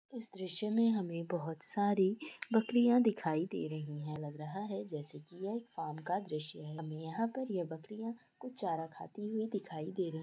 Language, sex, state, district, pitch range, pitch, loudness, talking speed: Hindi, female, Bihar, East Champaran, 160-220 Hz, 185 Hz, -37 LUFS, 210 wpm